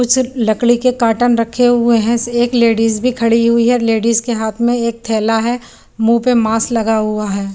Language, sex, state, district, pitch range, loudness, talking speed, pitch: Hindi, female, Chandigarh, Chandigarh, 225-240 Hz, -14 LUFS, 205 wpm, 235 Hz